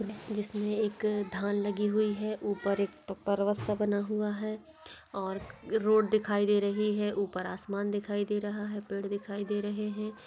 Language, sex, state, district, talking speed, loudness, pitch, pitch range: Hindi, female, Bihar, Begusarai, 180 wpm, -32 LUFS, 205 Hz, 200-210 Hz